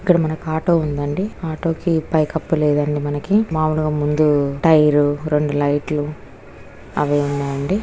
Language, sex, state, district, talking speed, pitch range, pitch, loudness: Telugu, female, Telangana, Karimnagar, 155 wpm, 145-160 Hz, 150 Hz, -19 LUFS